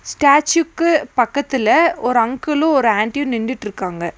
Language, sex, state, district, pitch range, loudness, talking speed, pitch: Tamil, female, Tamil Nadu, Nilgiris, 230-300 Hz, -16 LUFS, 100 wpm, 260 Hz